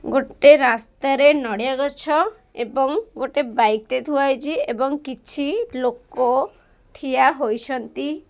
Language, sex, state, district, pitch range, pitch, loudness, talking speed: Odia, female, Odisha, Khordha, 255-290 Hz, 270 Hz, -20 LUFS, 115 wpm